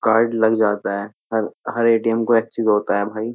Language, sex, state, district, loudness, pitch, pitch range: Hindi, male, Uttar Pradesh, Jyotiba Phule Nagar, -19 LUFS, 110 Hz, 105-115 Hz